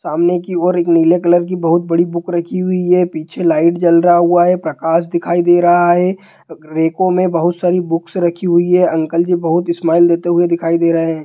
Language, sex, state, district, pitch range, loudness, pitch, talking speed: Hindi, male, Bihar, Jahanabad, 170-180 Hz, -14 LUFS, 175 Hz, 225 wpm